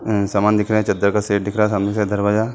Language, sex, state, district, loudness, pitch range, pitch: Hindi, male, Chhattisgarh, Sarguja, -18 LUFS, 100-105 Hz, 105 Hz